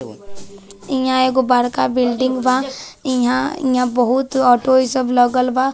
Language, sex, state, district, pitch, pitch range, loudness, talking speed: Hindi, male, Bihar, Vaishali, 255 Hz, 245-260 Hz, -16 LUFS, 135 wpm